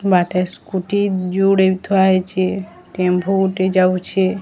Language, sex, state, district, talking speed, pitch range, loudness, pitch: Odia, female, Odisha, Sambalpur, 110 wpm, 185-195 Hz, -17 LUFS, 185 Hz